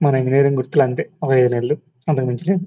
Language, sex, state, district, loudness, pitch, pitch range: Telugu, male, Andhra Pradesh, Guntur, -18 LUFS, 135 Hz, 130-150 Hz